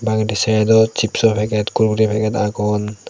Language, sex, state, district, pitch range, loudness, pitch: Chakma, male, Tripura, Unakoti, 105-110 Hz, -17 LUFS, 110 Hz